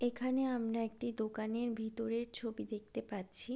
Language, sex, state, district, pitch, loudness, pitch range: Bengali, female, West Bengal, Jalpaiguri, 230 Hz, -38 LUFS, 220-240 Hz